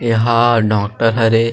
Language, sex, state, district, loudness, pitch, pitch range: Chhattisgarhi, male, Chhattisgarh, Sarguja, -14 LUFS, 115 Hz, 110-115 Hz